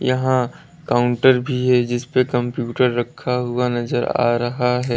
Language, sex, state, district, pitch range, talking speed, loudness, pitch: Hindi, male, Uttar Pradesh, Lalitpur, 120-125 Hz, 155 wpm, -19 LUFS, 125 Hz